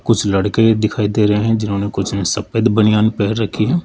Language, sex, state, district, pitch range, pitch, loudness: Hindi, male, Rajasthan, Jaipur, 100-110 Hz, 105 Hz, -16 LUFS